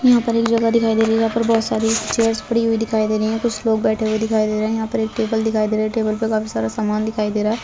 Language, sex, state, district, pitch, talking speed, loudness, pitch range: Hindi, female, Chhattisgarh, Bilaspur, 220 Hz, 340 wpm, -19 LUFS, 215-225 Hz